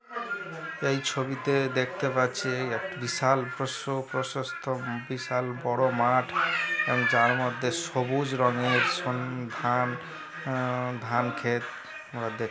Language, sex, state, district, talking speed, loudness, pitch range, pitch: Bengali, male, West Bengal, North 24 Parganas, 110 wpm, -28 LUFS, 125-135 Hz, 130 Hz